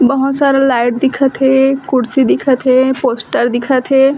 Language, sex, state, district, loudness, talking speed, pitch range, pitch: Chhattisgarhi, female, Chhattisgarh, Bilaspur, -12 LUFS, 160 wpm, 255-270 Hz, 265 Hz